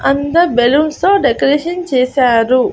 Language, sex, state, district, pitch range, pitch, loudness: Telugu, female, Andhra Pradesh, Annamaya, 255-335 Hz, 280 Hz, -13 LUFS